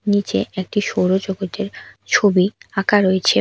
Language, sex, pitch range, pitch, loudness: Bengali, female, 190-205 Hz, 195 Hz, -19 LUFS